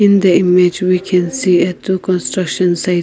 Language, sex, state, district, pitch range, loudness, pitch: English, female, Nagaland, Kohima, 180-185 Hz, -13 LUFS, 180 Hz